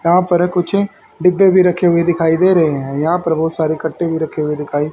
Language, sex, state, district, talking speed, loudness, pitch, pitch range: Hindi, male, Haryana, Charkhi Dadri, 255 wpm, -15 LUFS, 170 Hz, 160-180 Hz